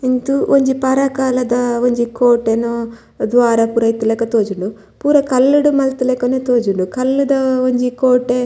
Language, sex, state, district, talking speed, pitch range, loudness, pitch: Tulu, female, Karnataka, Dakshina Kannada, 140 wpm, 230-265 Hz, -15 LUFS, 250 Hz